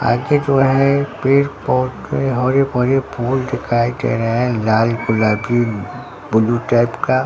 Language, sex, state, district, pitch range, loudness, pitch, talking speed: Hindi, male, Bihar, Katihar, 115-135 Hz, -17 LUFS, 125 Hz, 140 wpm